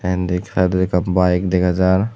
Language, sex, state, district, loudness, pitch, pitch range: Chakma, male, Tripura, West Tripura, -17 LUFS, 90 Hz, 90-95 Hz